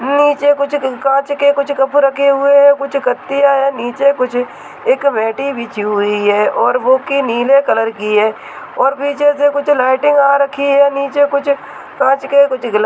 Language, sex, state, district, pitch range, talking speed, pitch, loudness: Hindi, male, Rajasthan, Nagaur, 250-280 Hz, 180 wpm, 275 Hz, -13 LUFS